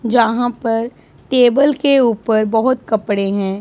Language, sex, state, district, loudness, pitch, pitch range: Hindi, male, Punjab, Pathankot, -15 LUFS, 230 Hz, 220-255 Hz